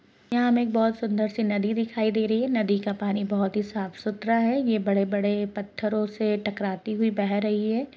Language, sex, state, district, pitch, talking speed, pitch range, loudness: Hindi, female, Uttarakhand, Uttarkashi, 215 Hz, 210 wpm, 205-225 Hz, -26 LUFS